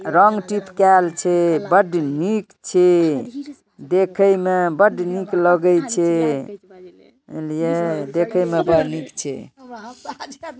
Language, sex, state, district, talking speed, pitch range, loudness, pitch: Maithili, male, Bihar, Darbhanga, 110 wpm, 170-200 Hz, -18 LUFS, 180 Hz